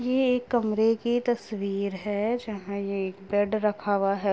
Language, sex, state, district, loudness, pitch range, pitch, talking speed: Hindi, female, Uttar Pradesh, Gorakhpur, -27 LUFS, 200-235 Hz, 210 Hz, 180 wpm